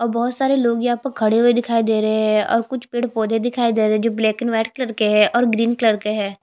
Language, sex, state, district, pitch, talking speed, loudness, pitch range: Hindi, female, Chhattisgarh, Jashpur, 230 Hz, 300 wpm, -18 LUFS, 220-240 Hz